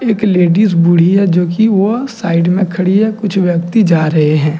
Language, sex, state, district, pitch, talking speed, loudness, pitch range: Hindi, male, Jharkhand, Deoghar, 185 Hz, 210 wpm, -12 LUFS, 170-210 Hz